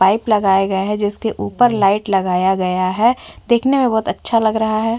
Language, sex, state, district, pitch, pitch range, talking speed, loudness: Hindi, female, Uttar Pradesh, Jyotiba Phule Nagar, 210 Hz, 195-225 Hz, 205 wpm, -16 LUFS